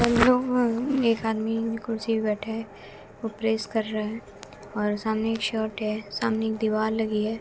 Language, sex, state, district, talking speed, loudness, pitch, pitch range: Hindi, female, Bihar, West Champaran, 160 wpm, -26 LUFS, 220 Hz, 215-225 Hz